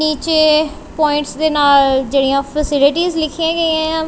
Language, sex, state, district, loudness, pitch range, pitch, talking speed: Punjabi, female, Punjab, Kapurthala, -14 LUFS, 280-315 Hz, 305 Hz, 130 wpm